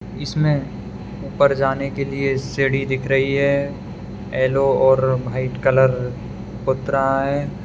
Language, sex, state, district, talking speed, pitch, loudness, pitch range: Hindi, male, Bihar, Madhepura, 125 wpm, 135 Hz, -19 LUFS, 130-140 Hz